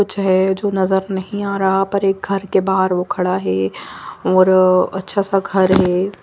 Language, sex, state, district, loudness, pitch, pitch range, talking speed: Hindi, female, Punjab, Fazilka, -17 LUFS, 190 Hz, 185-195 Hz, 200 wpm